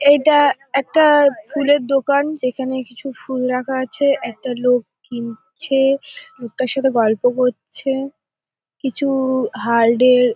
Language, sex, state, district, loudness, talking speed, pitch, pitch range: Bengali, female, West Bengal, North 24 Parganas, -17 LUFS, 110 wpm, 265 Hz, 250-280 Hz